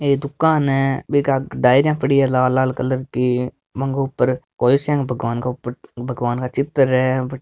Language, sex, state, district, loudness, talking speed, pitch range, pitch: Marwari, male, Rajasthan, Nagaur, -19 LUFS, 180 wpm, 125-135 Hz, 130 Hz